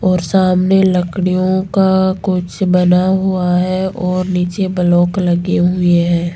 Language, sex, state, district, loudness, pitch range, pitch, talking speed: Hindi, female, Rajasthan, Jaipur, -14 LUFS, 180-190 Hz, 185 Hz, 130 wpm